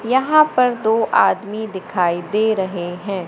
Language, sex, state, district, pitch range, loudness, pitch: Hindi, male, Madhya Pradesh, Katni, 185-240 Hz, -18 LUFS, 215 Hz